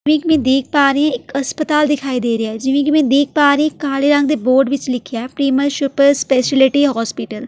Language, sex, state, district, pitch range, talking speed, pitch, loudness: Punjabi, female, Delhi, New Delhi, 260-290 Hz, 240 wpm, 275 Hz, -15 LUFS